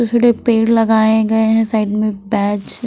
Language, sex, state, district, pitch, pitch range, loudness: Hindi, female, Punjab, Kapurthala, 220 Hz, 215-230 Hz, -14 LUFS